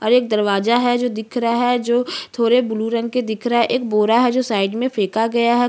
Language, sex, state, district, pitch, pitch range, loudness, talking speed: Hindi, female, Chhattisgarh, Bastar, 235 Hz, 220-245 Hz, -18 LUFS, 255 wpm